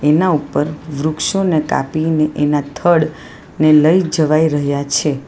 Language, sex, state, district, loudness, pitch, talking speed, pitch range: Gujarati, female, Gujarat, Valsad, -15 LUFS, 155 Hz, 125 wpm, 150-160 Hz